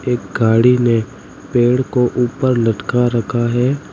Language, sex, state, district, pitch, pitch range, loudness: Hindi, male, Uttar Pradesh, Lalitpur, 120 Hz, 115-125 Hz, -16 LUFS